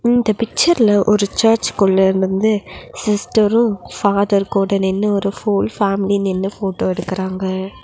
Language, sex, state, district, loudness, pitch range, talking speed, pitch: Tamil, female, Tamil Nadu, Nilgiris, -16 LUFS, 190-215 Hz, 120 wpm, 200 Hz